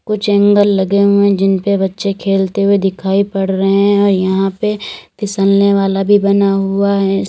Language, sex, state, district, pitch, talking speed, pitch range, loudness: Hindi, female, Uttar Pradesh, Lalitpur, 200 Hz, 190 wpm, 195-200 Hz, -13 LUFS